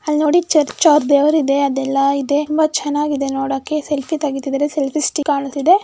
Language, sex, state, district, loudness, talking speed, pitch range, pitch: Kannada, female, Karnataka, Mysore, -17 LUFS, 145 wpm, 275-305 Hz, 290 Hz